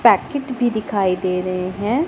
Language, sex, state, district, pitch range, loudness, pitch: Hindi, female, Punjab, Pathankot, 185-245 Hz, -20 LUFS, 215 Hz